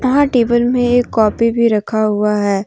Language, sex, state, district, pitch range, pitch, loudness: Hindi, female, Jharkhand, Deoghar, 210-245 Hz, 230 Hz, -14 LUFS